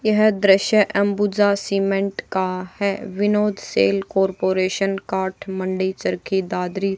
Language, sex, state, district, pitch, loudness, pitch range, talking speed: Hindi, female, Haryana, Charkhi Dadri, 195 Hz, -20 LUFS, 190-200 Hz, 110 wpm